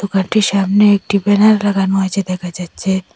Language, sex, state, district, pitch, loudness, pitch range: Bengali, female, Assam, Hailakandi, 195 Hz, -14 LUFS, 190-205 Hz